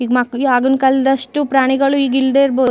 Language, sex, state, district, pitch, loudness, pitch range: Kannada, female, Karnataka, Chamarajanagar, 265 Hz, -14 LUFS, 255-275 Hz